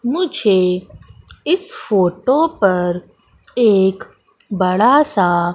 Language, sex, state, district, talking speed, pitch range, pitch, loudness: Hindi, female, Madhya Pradesh, Katni, 75 wpm, 180-285 Hz, 200 Hz, -16 LUFS